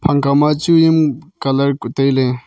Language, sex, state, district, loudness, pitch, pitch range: Wancho, male, Arunachal Pradesh, Longding, -15 LUFS, 140 Hz, 135-155 Hz